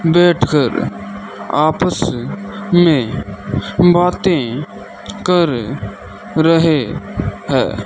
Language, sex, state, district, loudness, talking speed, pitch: Hindi, male, Rajasthan, Bikaner, -16 LUFS, 55 wpm, 150 Hz